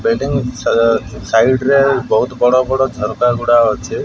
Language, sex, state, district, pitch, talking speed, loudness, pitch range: Odia, male, Odisha, Malkangiri, 120 Hz, 150 wpm, -14 LUFS, 115-130 Hz